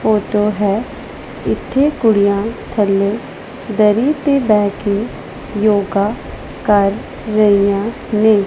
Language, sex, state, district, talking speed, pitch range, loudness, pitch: Punjabi, female, Punjab, Pathankot, 100 wpm, 200-225 Hz, -16 LUFS, 210 Hz